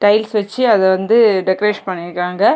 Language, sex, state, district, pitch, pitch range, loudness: Tamil, female, Tamil Nadu, Kanyakumari, 205 Hz, 185-210 Hz, -15 LUFS